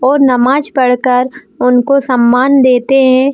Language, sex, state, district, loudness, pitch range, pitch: Hindi, female, Jharkhand, Jamtara, -10 LUFS, 250-270 Hz, 255 Hz